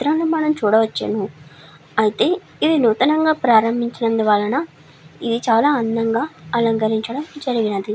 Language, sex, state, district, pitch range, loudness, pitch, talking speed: Telugu, female, Andhra Pradesh, Srikakulam, 210-275 Hz, -18 LUFS, 225 Hz, 90 wpm